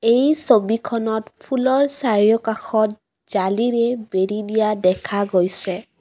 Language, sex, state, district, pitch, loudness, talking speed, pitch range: Assamese, female, Assam, Kamrup Metropolitan, 220 Hz, -19 LUFS, 90 wpm, 200-235 Hz